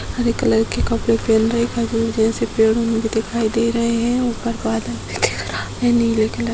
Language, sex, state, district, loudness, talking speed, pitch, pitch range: Hindi, female, Bihar, Bhagalpur, -19 LUFS, 230 wpm, 230 Hz, 220-235 Hz